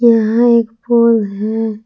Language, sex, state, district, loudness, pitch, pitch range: Hindi, female, Jharkhand, Palamu, -13 LUFS, 225 Hz, 220-235 Hz